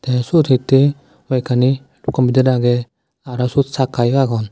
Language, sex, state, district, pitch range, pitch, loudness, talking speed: Chakma, male, Tripura, Dhalai, 125-135 Hz, 130 Hz, -16 LUFS, 145 wpm